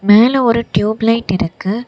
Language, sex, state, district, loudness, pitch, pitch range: Tamil, female, Tamil Nadu, Namakkal, -14 LUFS, 220 Hz, 200-235 Hz